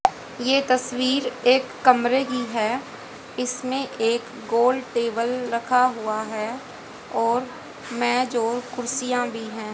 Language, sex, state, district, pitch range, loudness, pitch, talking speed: Hindi, female, Haryana, Jhajjar, 235-255 Hz, -23 LUFS, 245 Hz, 115 wpm